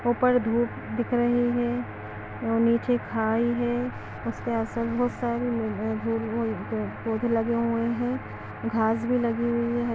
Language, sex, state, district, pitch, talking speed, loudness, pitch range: Hindi, female, Chhattisgarh, Balrampur, 230 Hz, 125 wpm, -26 LUFS, 220-240 Hz